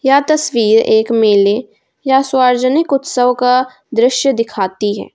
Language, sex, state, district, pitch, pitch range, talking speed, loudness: Hindi, female, Jharkhand, Ranchi, 250 Hz, 220-270 Hz, 130 wpm, -13 LUFS